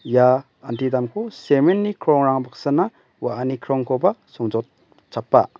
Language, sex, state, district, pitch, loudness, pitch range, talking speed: Garo, male, Meghalaya, West Garo Hills, 130 Hz, -20 LUFS, 125-145 Hz, 95 wpm